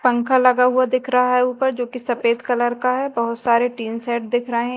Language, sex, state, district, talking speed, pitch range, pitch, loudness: Hindi, female, Madhya Pradesh, Dhar, 225 wpm, 235-250 Hz, 245 Hz, -19 LUFS